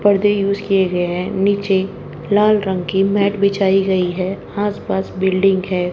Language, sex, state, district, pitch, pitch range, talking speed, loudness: Hindi, male, Haryana, Jhajjar, 195 Hz, 185-200 Hz, 160 wpm, -17 LUFS